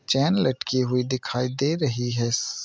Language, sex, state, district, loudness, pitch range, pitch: Hindi, male, Maharashtra, Nagpur, -24 LUFS, 120-140 Hz, 130 Hz